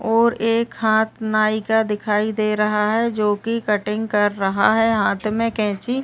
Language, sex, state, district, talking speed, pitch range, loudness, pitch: Hindi, female, Uttar Pradesh, Ghazipur, 180 wpm, 210-225 Hz, -19 LUFS, 220 Hz